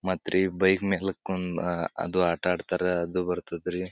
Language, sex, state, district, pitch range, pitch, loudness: Kannada, male, Karnataka, Bijapur, 90-95 Hz, 90 Hz, -27 LUFS